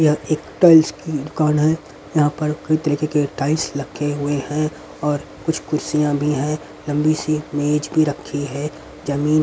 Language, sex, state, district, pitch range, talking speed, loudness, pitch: Hindi, male, Haryana, Rohtak, 145-155 Hz, 180 wpm, -20 LUFS, 150 Hz